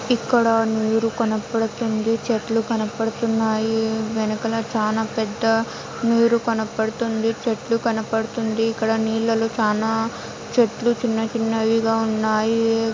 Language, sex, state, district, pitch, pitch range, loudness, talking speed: Telugu, female, Andhra Pradesh, Anantapur, 225 Hz, 220-230 Hz, -21 LUFS, 90 wpm